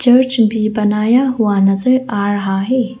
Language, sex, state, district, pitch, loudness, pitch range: Hindi, female, Arunachal Pradesh, Lower Dibang Valley, 220 Hz, -14 LUFS, 205-250 Hz